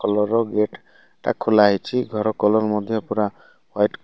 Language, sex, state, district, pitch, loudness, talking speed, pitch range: Odia, male, Odisha, Malkangiri, 105 Hz, -21 LUFS, 180 wpm, 105-110 Hz